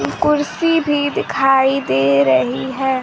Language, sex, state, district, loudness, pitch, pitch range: Hindi, female, Bihar, Kaimur, -16 LUFS, 265 Hz, 245-290 Hz